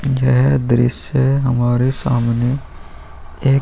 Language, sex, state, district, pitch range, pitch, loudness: Hindi, male, Bihar, Vaishali, 115-135 Hz, 125 Hz, -16 LUFS